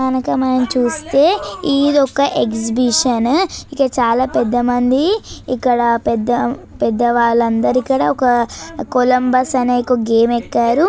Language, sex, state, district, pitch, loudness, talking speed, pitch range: Telugu, male, Telangana, Nalgonda, 250 Hz, -15 LUFS, 120 wpm, 235-265 Hz